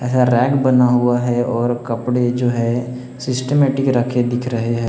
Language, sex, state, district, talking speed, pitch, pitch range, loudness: Hindi, male, Maharashtra, Gondia, 170 wpm, 125 Hz, 120-125 Hz, -17 LUFS